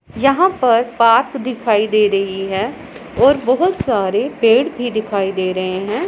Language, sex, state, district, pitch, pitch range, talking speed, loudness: Hindi, female, Punjab, Pathankot, 230 Hz, 200-260 Hz, 160 wpm, -16 LUFS